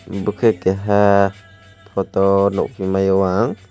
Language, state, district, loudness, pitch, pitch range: Kokborok, Tripura, West Tripura, -17 LUFS, 100 Hz, 95-105 Hz